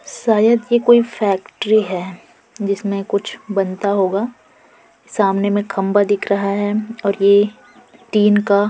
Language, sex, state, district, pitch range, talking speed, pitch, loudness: Hindi, female, Chhattisgarh, Korba, 200-220 Hz, 140 wpm, 205 Hz, -17 LUFS